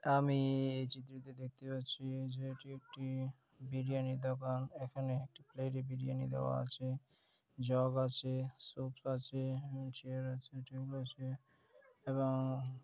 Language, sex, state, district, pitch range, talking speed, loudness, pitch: Bengali, male, West Bengal, Dakshin Dinajpur, 130-135 Hz, 135 wpm, -40 LUFS, 130 Hz